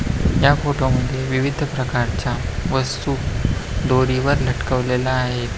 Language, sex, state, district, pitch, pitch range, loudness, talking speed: Marathi, male, Maharashtra, Pune, 130 Hz, 120-130 Hz, -20 LUFS, 105 wpm